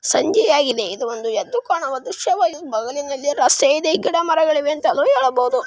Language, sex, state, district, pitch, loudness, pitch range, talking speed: Kannada, female, Karnataka, Raichur, 290 Hz, -18 LUFS, 260-330 Hz, 115 wpm